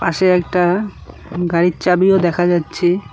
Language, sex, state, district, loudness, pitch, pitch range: Bengali, male, West Bengal, Cooch Behar, -16 LUFS, 175 Hz, 175-185 Hz